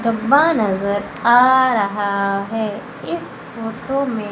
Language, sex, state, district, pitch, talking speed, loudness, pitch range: Hindi, female, Madhya Pradesh, Umaria, 225 Hz, 110 wpm, -18 LUFS, 205-255 Hz